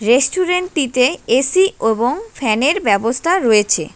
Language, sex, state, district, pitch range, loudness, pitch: Bengali, female, West Bengal, Cooch Behar, 225-360 Hz, -15 LUFS, 255 Hz